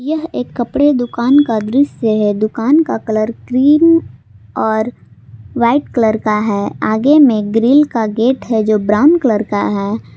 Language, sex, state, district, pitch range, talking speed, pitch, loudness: Hindi, female, Jharkhand, Palamu, 215-275 Hz, 160 wpm, 225 Hz, -13 LUFS